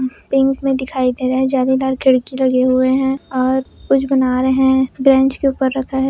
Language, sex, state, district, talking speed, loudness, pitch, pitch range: Hindi, female, Maharashtra, Aurangabad, 205 wpm, -16 LUFS, 265 Hz, 260-270 Hz